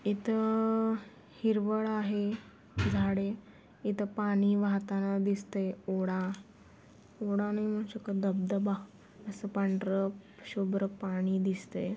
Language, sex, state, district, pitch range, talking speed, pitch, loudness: Marathi, female, Maharashtra, Sindhudurg, 195-210 Hz, 100 wpm, 200 Hz, -32 LUFS